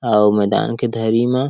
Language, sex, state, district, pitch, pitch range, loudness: Chhattisgarhi, male, Chhattisgarh, Sarguja, 115 Hz, 105-120 Hz, -17 LUFS